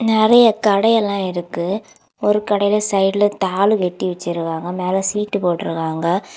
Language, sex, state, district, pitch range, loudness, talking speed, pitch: Tamil, female, Tamil Nadu, Kanyakumari, 175-210 Hz, -18 LUFS, 130 wpm, 195 Hz